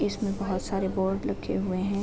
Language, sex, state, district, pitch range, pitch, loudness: Hindi, female, Bihar, Sitamarhi, 185-200 Hz, 190 Hz, -29 LUFS